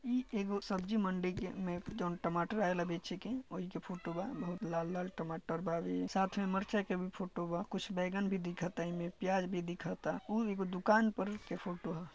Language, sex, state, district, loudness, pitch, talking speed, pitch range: Bhojpuri, male, Bihar, Gopalganj, -38 LUFS, 185 Hz, 230 wpm, 175-200 Hz